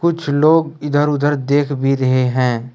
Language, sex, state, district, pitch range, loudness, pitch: Hindi, male, Jharkhand, Deoghar, 130-150 Hz, -16 LUFS, 145 Hz